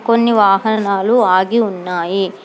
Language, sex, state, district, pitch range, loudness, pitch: Telugu, female, Telangana, Hyderabad, 190-230 Hz, -14 LUFS, 200 Hz